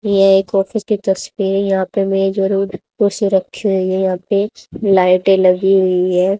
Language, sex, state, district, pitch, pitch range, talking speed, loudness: Hindi, female, Haryana, Jhajjar, 195 Hz, 190-200 Hz, 185 wpm, -15 LUFS